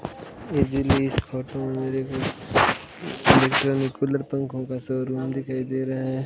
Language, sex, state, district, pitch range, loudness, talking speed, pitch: Hindi, male, Rajasthan, Bikaner, 130-135 Hz, -24 LUFS, 125 wpm, 130 Hz